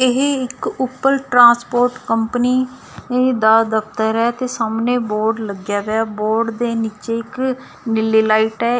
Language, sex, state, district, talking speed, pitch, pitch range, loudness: Punjabi, female, Punjab, Fazilka, 135 wpm, 230 Hz, 220-250 Hz, -17 LUFS